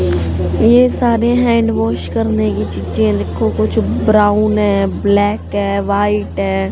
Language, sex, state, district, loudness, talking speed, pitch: Hindi, female, Haryana, Jhajjar, -14 LUFS, 145 wpm, 200 Hz